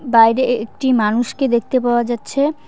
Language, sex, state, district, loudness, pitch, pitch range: Bengali, female, West Bengal, Cooch Behar, -17 LUFS, 245 Hz, 235-265 Hz